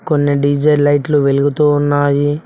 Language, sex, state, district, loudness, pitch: Telugu, male, Telangana, Mahabubabad, -13 LUFS, 145 Hz